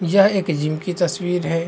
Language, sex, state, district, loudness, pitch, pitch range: Hindi, male, Chhattisgarh, Raigarh, -20 LUFS, 175 Hz, 165-180 Hz